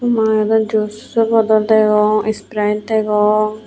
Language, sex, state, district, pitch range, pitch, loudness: Chakma, female, Tripura, Unakoti, 215-220 Hz, 215 Hz, -15 LUFS